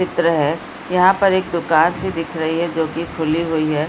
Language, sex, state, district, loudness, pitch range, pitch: Hindi, female, Chhattisgarh, Balrampur, -18 LUFS, 160-180 Hz, 165 Hz